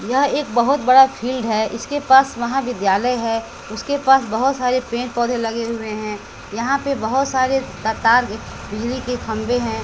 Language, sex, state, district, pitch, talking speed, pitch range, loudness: Hindi, female, Bihar, West Champaran, 245 Hz, 175 wpm, 225-265 Hz, -19 LUFS